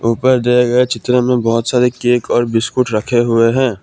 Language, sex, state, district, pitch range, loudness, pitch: Hindi, male, Assam, Kamrup Metropolitan, 115-125 Hz, -14 LUFS, 120 Hz